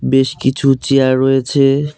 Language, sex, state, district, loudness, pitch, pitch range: Bengali, male, West Bengal, Cooch Behar, -13 LUFS, 135 Hz, 130-140 Hz